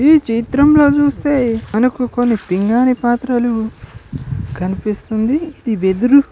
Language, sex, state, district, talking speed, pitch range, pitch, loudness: Telugu, male, Telangana, Nalgonda, 105 wpm, 210-270 Hz, 240 Hz, -15 LUFS